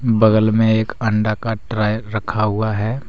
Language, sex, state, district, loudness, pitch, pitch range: Hindi, male, Jharkhand, Deoghar, -18 LUFS, 110 Hz, 105-110 Hz